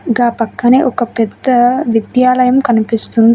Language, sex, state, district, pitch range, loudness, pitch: Telugu, female, Telangana, Hyderabad, 230-255 Hz, -12 LUFS, 240 Hz